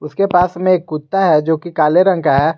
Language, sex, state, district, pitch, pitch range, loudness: Hindi, male, Jharkhand, Garhwa, 175 Hz, 155-185 Hz, -14 LUFS